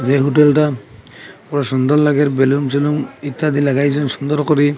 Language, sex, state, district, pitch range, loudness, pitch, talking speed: Bengali, male, Assam, Hailakandi, 135-150 Hz, -16 LUFS, 145 Hz, 150 wpm